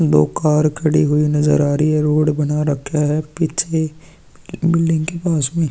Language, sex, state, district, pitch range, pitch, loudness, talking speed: Hindi, male, Chhattisgarh, Sukma, 150-160 Hz, 155 Hz, -17 LUFS, 190 wpm